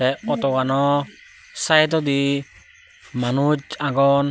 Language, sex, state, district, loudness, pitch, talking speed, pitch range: Chakma, male, Tripura, Unakoti, -20 LUFS, 140 Hz, 70 wpm, 135-155 Hz